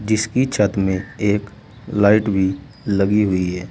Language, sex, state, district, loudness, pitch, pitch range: Hindi, male, Uttar Pradesh, Saharanpur, -19 LUFS, 100 Hz, 95-105 Hz